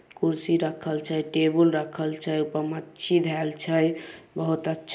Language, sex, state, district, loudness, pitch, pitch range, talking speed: Maithili, male, Bihar, Samastipur, -26 LUFS, 160 Hz, 155-160 Hz, 155 wpm